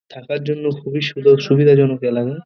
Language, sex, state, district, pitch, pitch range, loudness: Bengali, male, West Bengal, Purulia, 140 Hz, 135-145 Hz, -16 LUFS